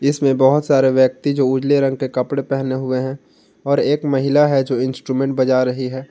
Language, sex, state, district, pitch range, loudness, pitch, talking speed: Hindi, male, Jharkhand, Ranchi, 130-140 Hz, -17 LUFS, 135 Hz, 205 wpm